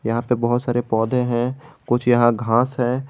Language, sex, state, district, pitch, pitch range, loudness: Hindi, male, Jharkhand, Garhwa, 120 Hz, 120-125 Hz, -20 LUFS